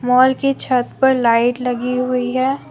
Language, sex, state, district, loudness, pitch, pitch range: Hindi, female, Jharkhand, Deoghar, -17 LUFS, 250 Hz, 245-260 Hz